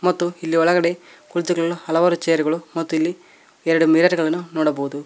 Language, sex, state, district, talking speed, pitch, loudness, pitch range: Kannada, male, Karnataka, Koppal, 130 wpm, 165 Hz, -20 LUFS, 160-175 Hz